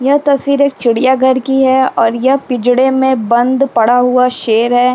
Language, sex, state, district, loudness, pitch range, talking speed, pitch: Hindi, female, Uttar Pradesh, Jyotiba Phule Nagar, -11 LUFS, 245-265 Hz, 180 wpm, 260 Hz